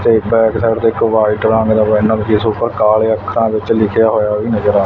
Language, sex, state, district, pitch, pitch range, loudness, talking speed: Punjabi, male, Punjab, Fazilka, 110 Hz, 105-115 Hz, -13 LUFS, 245 wpm